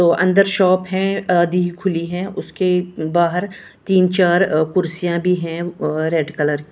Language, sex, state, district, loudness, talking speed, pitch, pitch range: Hindi, female, Maharashtra, Washim, -18 LUFS, 170 wpm, 180 Hz, 170-185 Hz